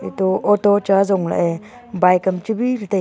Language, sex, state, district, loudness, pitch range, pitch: Wancho, female, Arunachal Pradesh, Longding, -17 LUFS, 185-205 Hz, 195 Hz